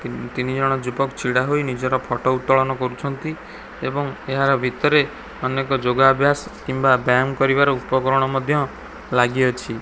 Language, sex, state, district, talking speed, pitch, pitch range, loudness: Odia, male, Odisha, Khordha, 130 wpm, 135 Hz, 125-135 Hz, -20 LUFS